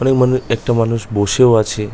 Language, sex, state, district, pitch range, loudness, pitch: Bengali, male, West Bengal, North 24 Parganas, 110-125 Hz, -15 LUFS, 115 Hz